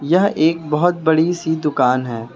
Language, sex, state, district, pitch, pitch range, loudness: Hindi, male, Uttar Pradesh, Lucknow, 160 Hz, 140-170 Hz, -17 LUFS